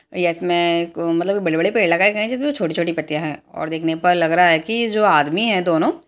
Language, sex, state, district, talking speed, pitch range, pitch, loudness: Hindi, female, Uttarakhand, Uttarkashi, 255 wpm, 165-200 Hz, 170 Hz, -18 LUFS